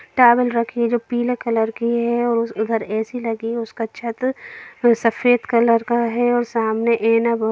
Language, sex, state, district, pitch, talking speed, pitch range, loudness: Hindi, female, Bihar, Jamui, 235 Hz, 190 wpm, 230-240 Hz, -19 LUFS